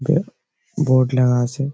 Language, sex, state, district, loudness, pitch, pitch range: Bengali, male, West Bengal, Malda, -18 LUFS, 130 Hz, 130-150 Hz